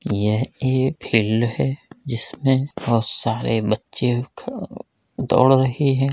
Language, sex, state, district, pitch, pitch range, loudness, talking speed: Hindi, male, Uttar Pradesh, Jalaun, 125 Hz, 115-135 Hz, -21 LUFS, 115 wpm